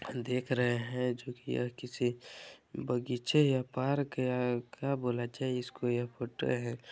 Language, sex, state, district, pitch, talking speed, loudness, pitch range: Hindi, male, Chhattisgarh, Balrampur, 125 Hz, 145 wpm, -34 LUFS, 120-130 Hz